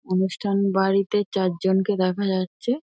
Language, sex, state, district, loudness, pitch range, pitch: Bengali, female, West Bengal, North 24 Parganas, -23 LUFS, 185-200 Hz, 195 Hz